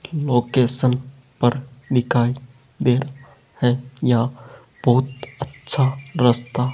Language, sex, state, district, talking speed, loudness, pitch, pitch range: Hindi, male, Rajasthan, Jaipur, 100 wpm, -20 LUFS, 130 Hz, 125-135 Hz